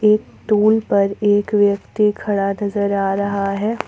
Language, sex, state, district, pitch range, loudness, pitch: Hindi, female, Jharkhand, Ranchi, 200-210 Hz, -18 LUFS, 205 Hz